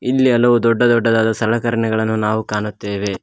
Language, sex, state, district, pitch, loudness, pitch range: Kannada, male, Karnataka, Koppal, 115 Hz, -16 LUFS, 105-120 Hz